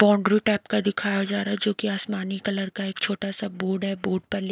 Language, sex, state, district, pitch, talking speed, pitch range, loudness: Hindi, female, Odisha, Nuapada, 200 Hz, 265 wpm, 195-210 Hz, -25 LUFS